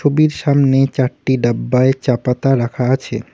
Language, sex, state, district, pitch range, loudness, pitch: Bengali, male, West Bengal, Cooch Behar, 125-140 Hz, -15 LUFS, 130 Hz